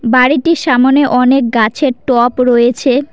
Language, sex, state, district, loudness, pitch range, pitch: Bengali, female, West Bengal, Cooch Behar, -11 LUFS, 245-275 Hz, 255 Hz